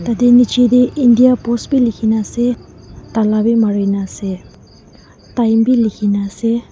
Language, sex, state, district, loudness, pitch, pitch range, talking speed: Nagamese, female, Nagaland, Dimapur, -14 LUFS, 230 Hz, 215-245 Hz, 135 wpm